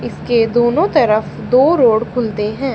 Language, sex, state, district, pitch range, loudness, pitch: Hindi, female, Haryana, Charkhi Dadri, 220-250 Hz, -14 LUFS, 240 Hz